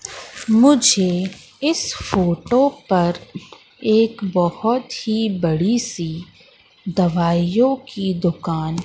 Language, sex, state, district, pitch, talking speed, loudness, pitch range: Hindi, female, Madhya Pradesh, Katni, 195 Hz, 75 wpm, -19 LUFS, 175-235 Hz